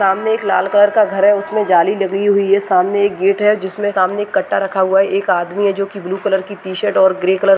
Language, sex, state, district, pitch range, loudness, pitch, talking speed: Hindi, male, Uttar Pradesh, Deoria, 190-205 Hz, -15 LUFS, 195 Hz, 285 wpm